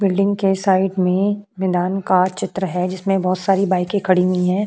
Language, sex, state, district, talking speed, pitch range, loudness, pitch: Hindi, female, Uttar Pradesh, Jyotiba Phule Nagar, 155 wpm, 185-195 Hz, -18 LUFS, 190 Hz